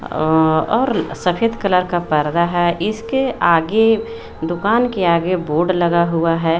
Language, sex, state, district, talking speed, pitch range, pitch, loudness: Hindi, female, Jharkhand, Garhwa, 135 wpm, 165-220 Hz, 175 Hz, -17 LUFS